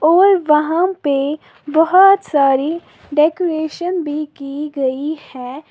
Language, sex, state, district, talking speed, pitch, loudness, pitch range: Hindi, female, Uttar Pradesh, Lalitpur, 105 wpm, 305 Hz, -16 LUFS, 285-340 Hz